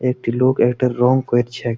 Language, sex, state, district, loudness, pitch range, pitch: Bengali, male, West Bengal, Malda, -17 LUFS, 120-130 Hz, 125 Hz